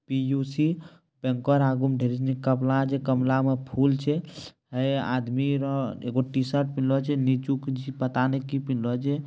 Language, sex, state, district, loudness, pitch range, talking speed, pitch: Maithili, male, Bihar, Bhagalpur, -26 LUFS, 130-140 Hz, 170 wpm, 135 Hz